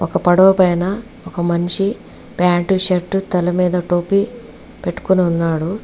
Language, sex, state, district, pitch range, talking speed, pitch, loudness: Telugu, female, Telangana, Hyderabad, 175-195 Hz, 125 wpm, 180 Hz, -16 LUFS